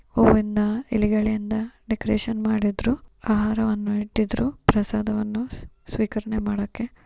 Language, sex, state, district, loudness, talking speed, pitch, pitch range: Kannada, female, Karnataka, Raichur, -24 LUFS, 75 wpm, 215 Hz, 210-225 Hz